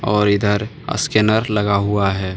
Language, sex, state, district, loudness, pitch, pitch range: Hindi, male, Jharkhand, Deoghar, -17 LUFS, 105 Hz, 100-110 Hz